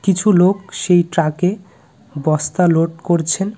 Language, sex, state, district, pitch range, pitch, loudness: Bengali, male, West Bengal, Cooch Behar, 165-190 Hz, 180 Hz, -16 LUFS